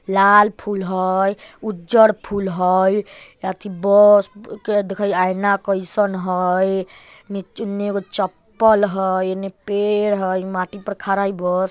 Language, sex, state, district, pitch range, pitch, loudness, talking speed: Bajjika, male, Bihar, Vaishali, 185-205 Hz, 195 Hz, -18 LUFS, 140 wpm